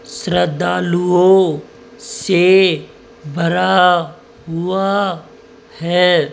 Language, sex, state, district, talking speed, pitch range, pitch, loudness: Hindi, male, Rajasthan, Jaipur, 45 wpm, 175-230 Hz, 180 Hz, -14 LUFS